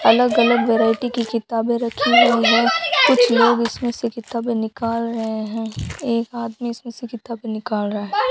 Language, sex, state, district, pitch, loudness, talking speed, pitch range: Hindi, female, Rajasthan, Bikaner, 235 Hz, -19 LUFS, 175 wpm, 225-240 Hz